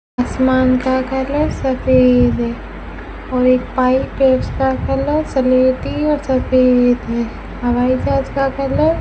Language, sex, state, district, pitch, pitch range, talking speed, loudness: Hindi, female, Rajasthan, Bikaner, 260 Hz, 250-265 Hz, 125 wpm, -16 LUFS